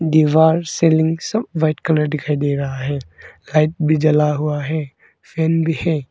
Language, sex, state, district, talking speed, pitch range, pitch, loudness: Hindi, male, Arunachal Pradesh, Longding, 165 wpm, 150-160 Hz, 155 Hz, -18 LUFS